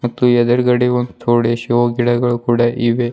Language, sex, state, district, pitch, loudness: Kannada, male, Karnataka, Bidar, 120 Hz, -15 LUFS